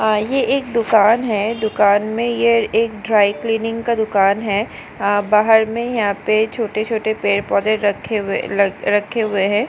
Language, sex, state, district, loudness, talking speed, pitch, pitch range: Hindi, female, Maharashtra, Solapur, -17 LUFS, 155 wpm, 215 Hz, 205-225 Hz